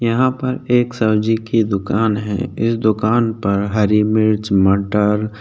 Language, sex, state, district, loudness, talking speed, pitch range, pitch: Hindi, male, Uttarakhand, Tehri Garhwal, -17 LUFS, 155 wpm, 105-115 Hz, 110 Hz